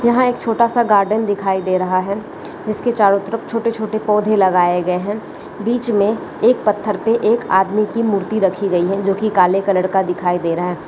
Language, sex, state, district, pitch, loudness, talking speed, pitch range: Hindi, female, West Bengal, Kolkata, 205 Hz, -17 LUFS, 215 wpm, 190-220 Hz